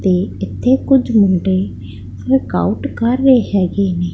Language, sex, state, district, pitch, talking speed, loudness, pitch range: Punjabi, female, Punjab, Pathankot, 205 Hz, 130 wpm, -15 LUFS, 185-255 Hz